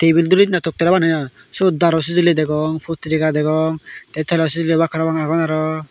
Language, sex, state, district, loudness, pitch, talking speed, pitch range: Chakma, male, Tripura, Dhalai, -17 LUFS, 160 Hz, 170 wpm, 155-165 Hz